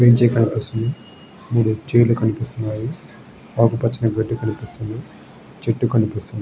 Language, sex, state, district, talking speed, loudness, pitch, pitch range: Telugu, male, Andhra Pradesh, Srikakulam, 95 wpm, -20 LUFS, 115 Hz, 110-120 Hz